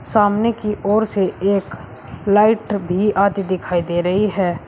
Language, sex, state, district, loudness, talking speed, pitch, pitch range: Hindi, male, Uttar Pradesh, Shamli, -18 LUFS, 155 wpm, 200 Hz, 180-210 Hz